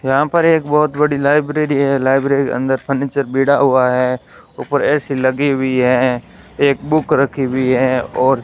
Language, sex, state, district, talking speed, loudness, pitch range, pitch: Hindi, male, Rajasthan, Bikaner, 185 wpm, -15 LUFS, 130-145 Hz, 135 Hz